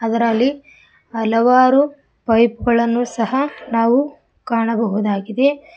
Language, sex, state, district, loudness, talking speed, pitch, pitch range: Kannada, female, Karnataka, Koppal, -17 LUFS, 75 wpm, 235 Hz, 230-275 Hz